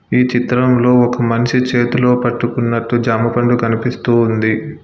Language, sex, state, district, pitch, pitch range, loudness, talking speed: Telugu, male, Telangana, Hyderabad, 120 Hz, 115-125 Hz, -14 LUFS, 125 wpm